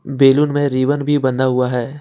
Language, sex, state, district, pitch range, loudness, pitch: Hindi, male, Jharkhand, Ranchi, 130-145 Hz, -16 LUFS, 135 Hz